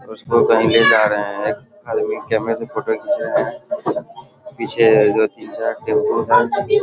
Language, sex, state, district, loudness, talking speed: Hindi, male, Bihar, Sitamarhi, -17 LUFS, 175 wpm